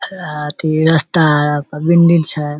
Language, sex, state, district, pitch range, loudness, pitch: Maithili, male, Bihar, Samastipur, 150-170 Hz, -14 LUFS, 155 Hz